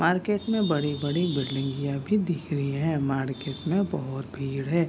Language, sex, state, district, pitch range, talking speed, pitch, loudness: Hindi, male, Bihar, Kishanganj, 135-175 Hz, 160 wpm, 145 Hz, -27 LUFS